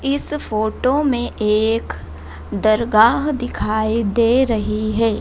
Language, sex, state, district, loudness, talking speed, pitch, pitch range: Hindi, female, Madhya Pradesh, Dhar, -18 LUFS, 105 wpm, 225 Hz, 215-250 Hz